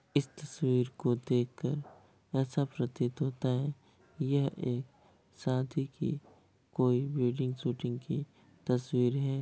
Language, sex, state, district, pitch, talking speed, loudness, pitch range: Hindi, male, Bihar, Kishanganj, 130 Hz, 115 wpm, -33 LUFS, 125-140 Hz